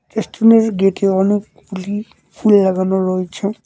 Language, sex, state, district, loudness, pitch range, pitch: Bengali, male, West Bengal, Cooch Behar, -15 LUFS, 190-210 Hz, 200 Hz